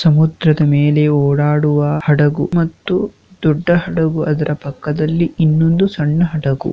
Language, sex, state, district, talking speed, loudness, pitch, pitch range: Kannada, male, Karnataka, Shimoga, 115 wpm, -15 LUFS, 155 Hz, 150-165 Hz